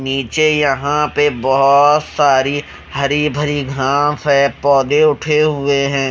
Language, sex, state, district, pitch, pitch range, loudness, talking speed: Hindi, male, Haryana, Rohtak, 140 Hz, 135-150 Hz, -14 LUFS, 125 wpm